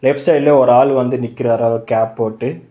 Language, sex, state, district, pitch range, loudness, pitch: Tamil, male, Tamil Nadu, Chennai, 115-130 Hz, -14 LUFS, 115 Hz